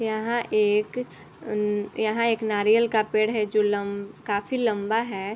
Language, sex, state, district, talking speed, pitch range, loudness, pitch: Hindi, female, Bihar, Sitamarhi, 170 wpm, 205-225 Hz, -24 LUFS, 215 Hz